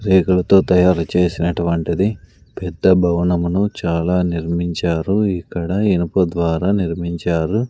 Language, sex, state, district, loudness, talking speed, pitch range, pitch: Telugu, male, Andhra Pradesh, Sri Satya Sai, -17 LUFS, 85 wpm, 85-95 Hz, 90 Hz